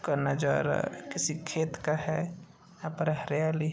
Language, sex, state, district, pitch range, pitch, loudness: Hindi, male, Uttar Pradesh, Gorakhpur, 155-165 Hz, 155 Hz, -31 LUFS